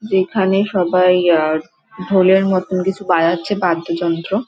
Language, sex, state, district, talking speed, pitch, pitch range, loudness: Bengali, female, West Bengal, Dakshin Dinajpur, 105 wpm, 185 Hz, 170-195 Hz, -16 LUFS